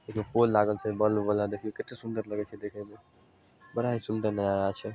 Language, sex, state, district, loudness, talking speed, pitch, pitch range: Maithili, male, Bihar, Samastipur, -30 LUFS, 230 wpm, 105 Hz, 105-110 Hz